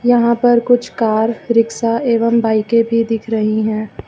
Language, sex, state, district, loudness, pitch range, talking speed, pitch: Hindi, female, Uttar Pradesh, Lucknow, -15 LUFS, 220-235 Hz, 160 wpm, 230 Hz